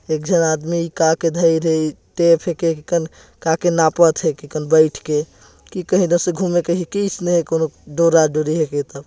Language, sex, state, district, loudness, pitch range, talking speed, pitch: Hindi, male, Chhattisgarh, Jashpur, -18 LUFS, 155-175 Hz, 110 wpm, 165 Hz